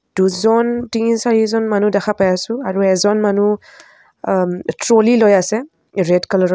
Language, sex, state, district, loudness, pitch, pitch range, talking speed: Assamese, female, Assam, Kamrup Metropolitan, -15 LUFS, 210 Hz, 190-225 Hz, 145 wpm